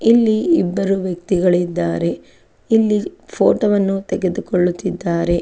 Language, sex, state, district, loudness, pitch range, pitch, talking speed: Kannada, female, Karnataka, Chamarajanagar, -17 LUFS, 175-205 Hz, 185 Hz, 75 wpm